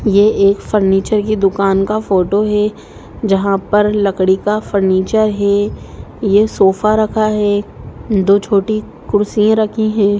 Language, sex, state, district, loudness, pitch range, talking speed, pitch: Hindi, female, Bihar, Gopalganj, -14 LUFS, 195-215 Hz, 135 wpm, 205 Hz